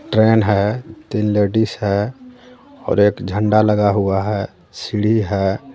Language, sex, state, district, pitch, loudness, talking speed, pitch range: Hindi, female, Jharkhand, Garhwa, 105 Hz, -17 LUFS, 135 wpm, 100-110 Hz